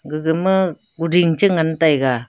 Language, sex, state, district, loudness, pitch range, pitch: Wancho, female, Arunachal Pradesh, Longding, -17 LUFS, 155-180 Hz, 165 Hz